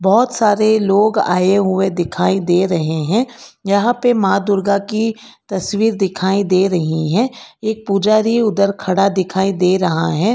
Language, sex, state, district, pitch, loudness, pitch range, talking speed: Hindi, female, Karnataka, Bangalore, 195 Hz, -16 LUFS, 185-215 Hz, 155 wpm